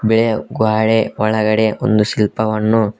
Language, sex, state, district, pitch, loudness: Kannada, male, Karnataka, Koppal, 110 Hz, -16 LUFS